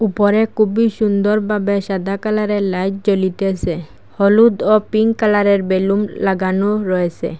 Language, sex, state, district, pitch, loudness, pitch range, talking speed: Bengali, female, Assam, Hailakandi, 200 Hz, -16 LUFS, 190-215 Hz, 115 wpm